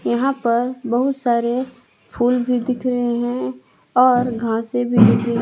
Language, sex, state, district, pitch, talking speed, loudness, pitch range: Hindi, female, Jharkhand, Palamu, 245 Hz, 165 wpm, -19 LUFS, 235-250 Hz